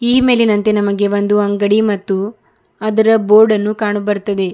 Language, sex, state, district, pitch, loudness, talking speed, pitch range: Kannada, female, Karnataka, Bidar, 210 Hz, -14 LUFS, 130 wpm, 205-215 Hz